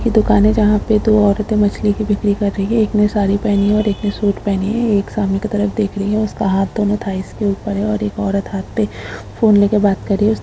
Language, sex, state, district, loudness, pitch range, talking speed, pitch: Hindi, female, Jharkhand, Sahebganj, -16 LUFS, 200-215 Hz, 280 wpm, 205 Hz